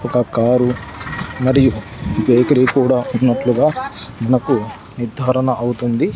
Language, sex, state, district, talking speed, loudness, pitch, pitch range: Telugu, male, Andhra Pradesh, Sri Satya Sai, 90 wpm, -16 LUFS, 125 Hz, 120-130 Hz